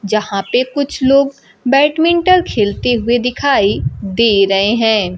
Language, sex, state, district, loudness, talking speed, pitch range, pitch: Hindi, female, Bihar, Kaimur, -14 LUFS, 125 wpm, 205-280 Hz, 235 Hz